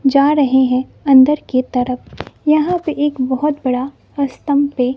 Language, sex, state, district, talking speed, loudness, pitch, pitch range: Hindi, female, Bihar, West Champaran, 145 wpm, -16 LUFS, 275 Hz, 255-290 Hz